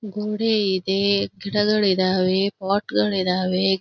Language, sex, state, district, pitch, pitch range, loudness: Kannada, female, Karnataka, Belgaum, 195 Hz, 185-210 Hz, -21 LUFS